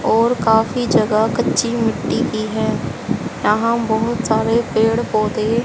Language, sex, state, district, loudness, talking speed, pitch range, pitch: Hindi, female, Haryana, Charkhi Dadri, -17 LUFS, 125 wpm, 220-235 Hz, 225 Hz